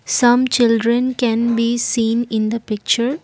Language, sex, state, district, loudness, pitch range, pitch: English, female, Assam, Kamrup Metropolitan, -17 LUFS, 230-240 Hz, 235 Hz